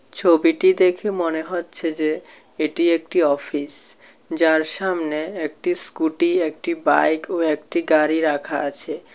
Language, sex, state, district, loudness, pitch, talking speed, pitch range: Bengali, male, Tripura, South Tripura, -20 LUFS, 165 Hz, 125 wpm, 155-185 Hz